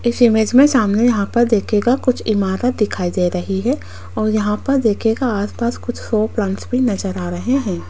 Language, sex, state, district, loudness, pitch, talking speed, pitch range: Hindi, female, Rajasthan, Jaipur, -17 LUFS, 220 Hz, 195 wpm, 200-245 Hz